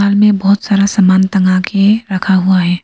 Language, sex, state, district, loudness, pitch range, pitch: Hindi, female, Arunachal Pradesh, Lower Dibang Valley, -11 LUFS, 185-200 Hz, 195 Hz